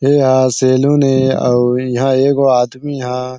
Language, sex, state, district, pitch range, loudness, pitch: Chhattisgarhi, male, Chhattisgarh, Sarguja, 125-135 Hz, -13 LUFS, 130 Hz